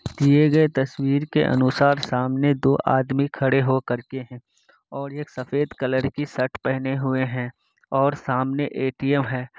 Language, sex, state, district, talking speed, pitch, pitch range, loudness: Hindi, male, Bihar, Kishanganj, 165 wpm, 135 Hz, 130-140 Hz, -22 LUFS